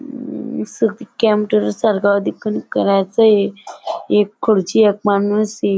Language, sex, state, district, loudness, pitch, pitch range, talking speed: Marathi, female, Maharashtra, Dhule, -17 LUFS, 210 Hz, 200-220 Hz, 105 wpm